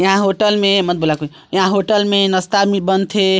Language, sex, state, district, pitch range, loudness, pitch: Chhattisgarhi, male, Chhattisgarh, Sarguja, 185-200 Hz, -15 LUFS, 195 Hz